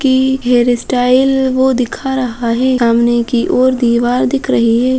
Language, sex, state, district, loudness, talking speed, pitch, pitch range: Hindi, female, Uttar Pradesh, Muzaffarnagar, -13 LUFS, 170 wpm, 250 Hz, 240-260 Hz